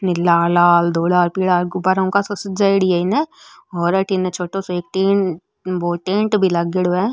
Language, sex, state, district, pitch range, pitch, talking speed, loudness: Marwari, female, Rajasthan, Nagaur, 175-195 Hz, 185 Hz, 175 wpm, -17 LUFS